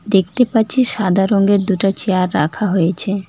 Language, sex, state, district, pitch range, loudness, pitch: Bengali, female, West Bengal, Alipurduar, 185-210 Hz, -15 LUFS, 195 Hz